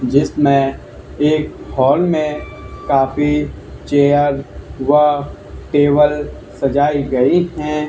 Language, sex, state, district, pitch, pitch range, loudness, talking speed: Hindi, male, Haryana, Charkhi Dadri, 145 Hz, 140-150 Hz, -15 LUFS, 85 wpm